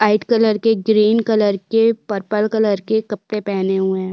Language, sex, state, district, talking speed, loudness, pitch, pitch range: Hindi, female, Chhattisgarh, Korba, 190 wpm, -17 LUFS, 215 Hz, 200-220 Hz